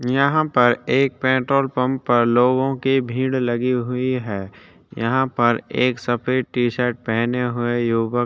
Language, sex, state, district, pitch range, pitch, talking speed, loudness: Hindi, male, Chhattisgarh, Sukma, 120-130 Hz, 125 Hz, 160 wpm, -20 LUFS